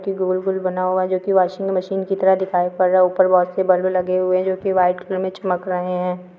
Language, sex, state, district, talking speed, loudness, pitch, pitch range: Hindi, female, Chhattisgarh, Sukma, 280 wpm, -19 LUFS, 185 Hz, 180-190 Hz